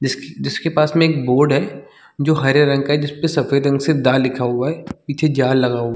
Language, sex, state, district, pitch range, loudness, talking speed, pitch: Hindi, male, Chhattisgarh, Bilaspur, 130-155 Hz, -17 LUFS, 240 wpm, 140 Hz